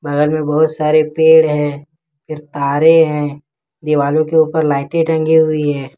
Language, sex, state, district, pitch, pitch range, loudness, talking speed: Hindi, male, Jharkhand, Ranchi, 155 Hz, 145-160 Hz, -14 LUFS, 160 wpm